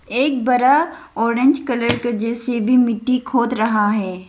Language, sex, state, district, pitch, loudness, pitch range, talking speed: Hindi, female, Arunachal Pradesh, Lower Dibang Valley, 245 Hz, -18 LUFS, 225-255 Hz, 140 wpm